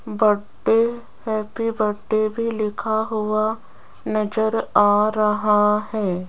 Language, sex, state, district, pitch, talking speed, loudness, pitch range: Hindi, female, Rajasthan, Jaipur, 215 Hz, 95 wpm, -21 LUFS, 210-220 Hz